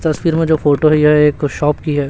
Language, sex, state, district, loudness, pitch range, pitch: Hindi, male, Chhattisgarh, Raipur, -13 LUFS, 150-160 Hz, 150 Hz